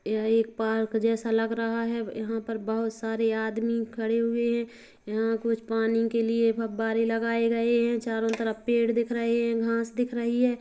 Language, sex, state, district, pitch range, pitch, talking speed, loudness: Hindi, female, Chhattisgarh, Kabirdham, 225-230 Hz, 230 Hz, 190 wpm, -27 LUFS